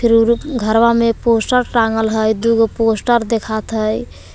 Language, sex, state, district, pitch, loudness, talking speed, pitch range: Magahi, female, Jharkhand, Palamu, 225 Hz, -15 LUFS, 125 wpm, 220-235 Hz